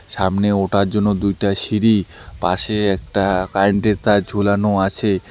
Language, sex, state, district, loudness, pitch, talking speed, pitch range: Bengali, male, West Bengal, Alipurduar, -18 LUFS, 100 Hz, 135 wpm, 95-105 Hz